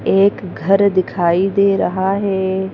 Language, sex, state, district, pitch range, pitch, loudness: Hindi, female, Madhya Pradesh, Bhopal, 190-195 Hz, 190 Hz, -16 LUFS